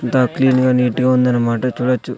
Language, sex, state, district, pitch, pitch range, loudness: Telugu, male, Andhra Pradesh, Sri Satya Sai, 125 Hz, 125-130 Hz, -16 LUFS